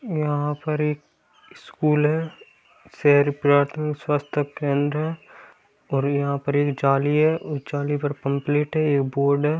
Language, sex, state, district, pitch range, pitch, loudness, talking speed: Hindi, male, Bihar, Bhagalpur, 140-150 Hz, 145 Hz, -22 LUFS, 125 wpm